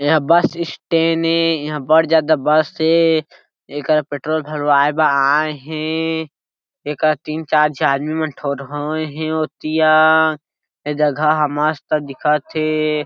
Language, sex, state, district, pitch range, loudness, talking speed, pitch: Chhattisgarhi, male, Chhattisgarh, Jashpur, 150-160 Hz, -17 LUFS, 125 wpm, 155 Hz